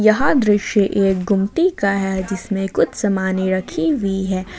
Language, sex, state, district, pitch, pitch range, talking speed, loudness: Hindi, female, Jharkhand, Ranchi, 195 Hz, 190-210 Hz, 155 wpm, -18 LUFS